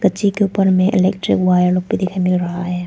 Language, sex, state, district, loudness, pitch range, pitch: Hindi, female, Arunachal Pradesh, Lower Dibang Valley, -16 LUFS, 180-195 Hz, 185 Hz